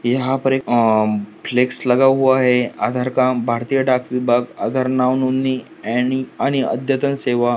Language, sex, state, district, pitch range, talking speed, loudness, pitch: Hindi, male, Maharashtra, Pune, 120-130 Hz, 160 wpm, -17 LUFS, 125 Hz